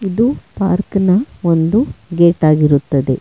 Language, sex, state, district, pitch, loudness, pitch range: Kannada, female, Karnataka, Bangalore, 175 Hz, -14 LUFS, 155-195 Hz